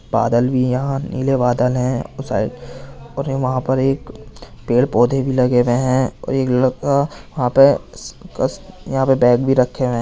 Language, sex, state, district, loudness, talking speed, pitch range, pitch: Hindi, male, Uttar Pradesh, Jyotiba Phule Nagar, -17 LUFS, 160 wpm, 125-135 Hz, 130 Hz